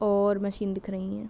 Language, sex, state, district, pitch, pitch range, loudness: Hindi, female, Uttar Pradesh, Hamirpur, 200 Hz, 195-205 Hz, -29 LUFS